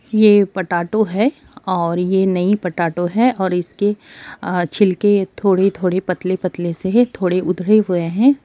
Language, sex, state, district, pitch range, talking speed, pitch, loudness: Hindi, female, Bihar, Gopalganj, 180-210 Hz, 135 wpm, 190 Hz, -17 LUFS